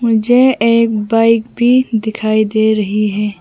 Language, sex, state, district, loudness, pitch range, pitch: Hindi, female, Mizoram, Aizawl, -13 LUFS, 215-230 Hz, 220 Hz